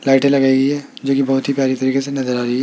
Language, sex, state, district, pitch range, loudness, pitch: Hindi, male, Rajasthan, Jaipur, 130-140 Hz, -17 LUFS, 135 Hz